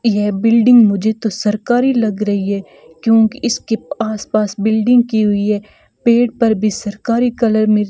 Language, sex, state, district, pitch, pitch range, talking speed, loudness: Hindi, female, Rajasthan, Bikaner, 220 Hz, 210-235 Hz, 165 wpm, -15 LUFS